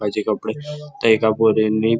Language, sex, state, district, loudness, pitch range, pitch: Marathi, male, Maharashtra, Nagpur, -18 LUFS, 110-115 Hz, 110 Hz